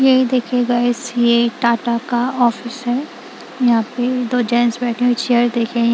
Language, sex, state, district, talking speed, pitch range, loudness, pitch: Hindi, female, Punjab, Kapurthala, 150 wpm, 235-250 Hz, -17 LUFS, 240 Hz